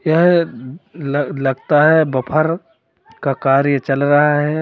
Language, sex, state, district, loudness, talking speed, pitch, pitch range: Hindi, male, Uttar Pradesh, Lalitpur, -16 LUFS, 115 wpm, 145 Hz, 135-160 Hz